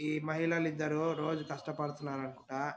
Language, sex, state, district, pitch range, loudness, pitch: Telugu, male, Andhra Pradesh, Anantapur, 145-160 Hz, -36 LUFS, 155 Hz